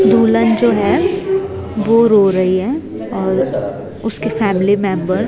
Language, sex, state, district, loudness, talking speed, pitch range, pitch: Hindi, female, Himachal Pradesh, Shimla, -15 LUFS, 135 wpm, 195-235 Hz, 220 Hz